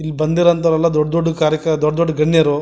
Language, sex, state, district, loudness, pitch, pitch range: Kannada, male, Karnataka, Mysore, -16 LUFS, 160 Hz, 155-165 Hz